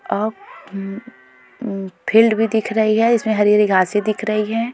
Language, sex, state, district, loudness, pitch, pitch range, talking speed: Hindi, female, Goa, North and South Goa, -17 LUFS, 215 Hz, 200-225 Hz, 150 wpm